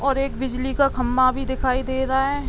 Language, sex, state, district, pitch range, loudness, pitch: Hindi, female, Jharkhand, Sahebganj, 255-270 Hz, -22 LUFS, 265 Hz